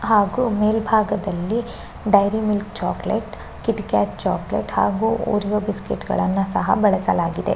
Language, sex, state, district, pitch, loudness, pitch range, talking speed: Kannada, female, Karnataka, Shimoga, 210 Hz, -21 LUFS, 205-220 Hz, 110 wpm